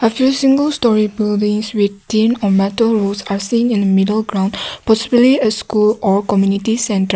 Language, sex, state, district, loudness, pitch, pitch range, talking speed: English, female, Nagaland, Kohima, -15 LUFS, 215 Hz, 200-230 Hz, 165 wpm